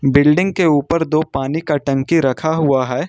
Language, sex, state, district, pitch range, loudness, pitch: Hindi, male, Uttar Pradesh, Lucknow, 135-160 Hz, -16 LUFS, 150 Hz